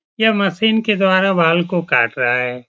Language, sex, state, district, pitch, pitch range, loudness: Hindi, male, Uttar Pradesh, Etah, 190 Hz, 170-220 Hz, -15 LUFS